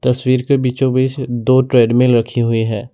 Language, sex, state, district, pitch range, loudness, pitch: Hindi, male, Assam, Sonitpur, 120-130 Hz, -15 LUFS, 125 Hz